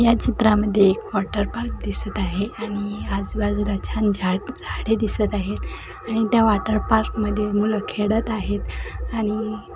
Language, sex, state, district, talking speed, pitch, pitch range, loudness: Marathi, female, Maharashtra, Sindhudurg, 135 wpm, 210 Hz, 205-220 Hz, -22 LUFS